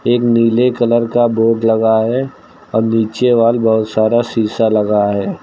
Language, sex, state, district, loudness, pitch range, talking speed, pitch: Hindi, male, Uttar Pradesh, Lucknow, -14 LUFS, 110-120 Hz, 165 wpm, 115 Hz